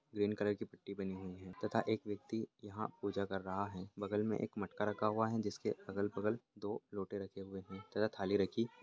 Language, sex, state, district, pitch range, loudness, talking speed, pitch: Hindi, male, Chhattisgarh, Bilaspur, 95-105 Hz, -40 LUFS, 215 wpm, 105 Hz